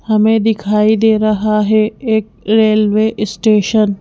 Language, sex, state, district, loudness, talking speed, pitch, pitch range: Hindi, female, Madhya Pradesh, Bhopal, -13 LUFS, 135 wpm, 215 Hz, 210-220 Hz